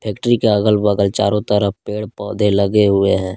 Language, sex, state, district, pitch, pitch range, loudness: Hindi, male, Jharkhand, Palamu, 105 Hz, 100-105 Hz, -16 LUFS